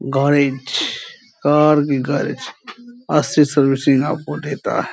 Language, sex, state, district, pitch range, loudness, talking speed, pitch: Hindi, male, Bihar, Araria, 135-150 Hz, -17 LUFS, 110 wpm, 140 Hz